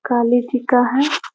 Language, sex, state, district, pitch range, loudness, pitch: Hindi, female, Bihar, Muzaffarpur, 245-265 Hz, -17 LUFS, 250 Hz